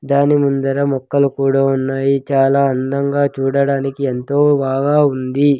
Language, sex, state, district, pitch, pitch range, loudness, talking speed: Telugu, male, Andhra Pradesh, Sri Satya Sai, 140 Hz, 135-140 Hz, -16 LUFS, 120 wpm